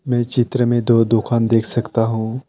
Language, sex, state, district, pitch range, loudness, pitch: Hindi, male, West Bengal, Alipurduar, 115-120 Hz, -17 LUFS, 120 Hz